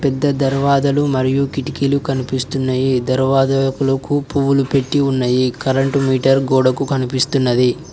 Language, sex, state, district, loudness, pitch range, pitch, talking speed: Telugu, male, Telangana, Mahabubabad, -16 LUFS, 130-140 Hz, 135 Hz, 100 wpm